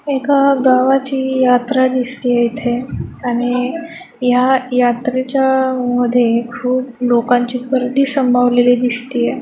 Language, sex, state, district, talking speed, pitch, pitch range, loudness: Marathi, female, Maharashtra, Chandrapur, 90 wpm, 250 Hz, 245-265 Hz, -15 LUFS